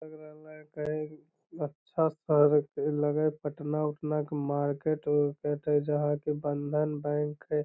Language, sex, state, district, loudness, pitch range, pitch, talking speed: Magahi, male, Bihar, Lakhisarai, -30 LUFS, 145-155 Hz, 150 Hz, 155 wpm